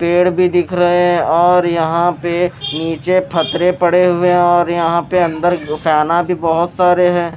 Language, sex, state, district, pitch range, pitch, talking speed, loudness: Hindi, male, Maharashtra, Mumbai Suburban, 165-180 Hz, 175 Hz, 180 wpm, -14 LUFS